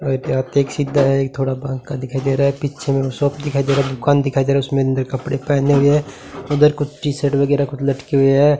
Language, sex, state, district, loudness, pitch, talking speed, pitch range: Hindi, male, Rajasthan, Bikaner, -18 LUFS, 140 Hz, 280 wpm, 135-145 Hz